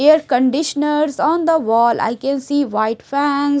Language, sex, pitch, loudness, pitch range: English, female, 285 Hz, -17 LUFS, 250-295 Hz